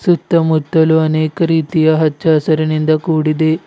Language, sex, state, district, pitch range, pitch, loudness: Kannada, male, Karnataka, Bidar, 155-160 Hz, 160 Hz, -14 LUFS